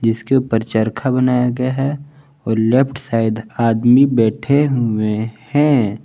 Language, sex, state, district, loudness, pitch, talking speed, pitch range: Hindi, male, Jharkhand, Palamu, -16 LUFS, 120 Hz, 130 wpm, 110-135 Hz